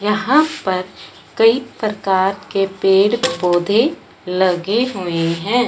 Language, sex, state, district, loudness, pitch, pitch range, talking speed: Hindi, male, Punjab, Fazilka, -17 LUFS, 200 Hz, 185-235 Hz, 105 wpm